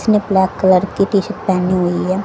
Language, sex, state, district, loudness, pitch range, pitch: Hindi, female, Haryana, Charkhi Dadri, -15 LUFS, 185-200 Hz, 190 Hz